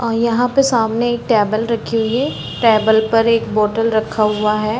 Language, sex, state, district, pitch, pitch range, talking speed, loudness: Hindi, female, Uttar Pradesh, Varanasi, 225 Hz, 220-235 Hz, 200 wpm, -16 LUFS